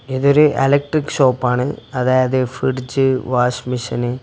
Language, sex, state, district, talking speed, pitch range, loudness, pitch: Malayalam, male, Kerala, Kasaragod, 115 wpm, 125-135 Hz, -17 LUFS, 130 Hz